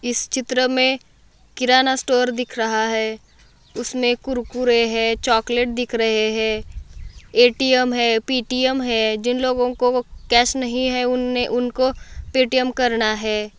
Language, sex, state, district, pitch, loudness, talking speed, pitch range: Hindi, female, Maharashtra, Solapur, 245 Hz, -19 LUFS, 160 wpm, 230-255 Hz